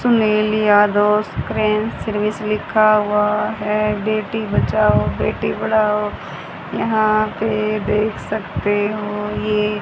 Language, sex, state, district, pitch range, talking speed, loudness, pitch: Hindi, female, Haryana, Charkhi Dadri, 210-215 Hz, 105 wpm, -18 LUFS, 215 Hz